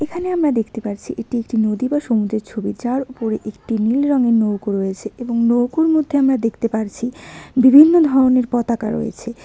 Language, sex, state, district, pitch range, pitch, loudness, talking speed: Bengali, female, West Bengal, Alipurduar, 220-270 Hz, 235 Hz, -18 LUFS, 170 wpm